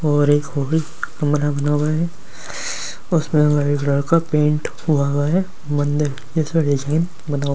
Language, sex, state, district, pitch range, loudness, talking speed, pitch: Hindi, male, Delhi, New Delhi, 145-160 Hz, -20 LUFS, 145 wpm, 150 Hz